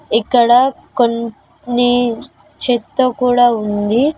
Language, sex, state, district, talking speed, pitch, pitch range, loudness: Telugu, female, Telangana, Mahabubabad, 70 wpm, 245 Hz, 230-250 Hz, -15 LUFS